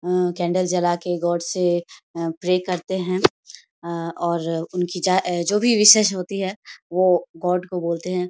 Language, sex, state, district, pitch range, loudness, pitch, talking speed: Hindi, female, Bihar, Samastipur, 175-185 Hz, -21 LUFS, 180 Hz, 160 wpm